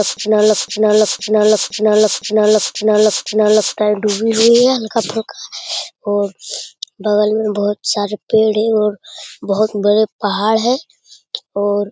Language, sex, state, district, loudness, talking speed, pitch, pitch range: Hindi, male, Bihar, Lakhisarai, -15 LUFS, 100 wpm, 215 Hz, 210-220 Hz